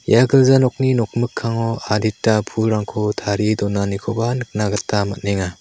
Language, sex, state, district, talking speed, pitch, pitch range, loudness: Garo, male, Meghalaya, South Garo Hills, 130 wpm, 110 Hz, 105-120 Hz, -18 LUFS